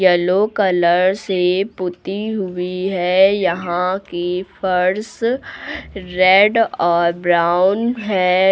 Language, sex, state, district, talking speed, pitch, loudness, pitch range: Hindi, female, Uttar Pradesh, Lucknow, 90 wpm, 185 Hz, -17 LUFS, 180-200 Hz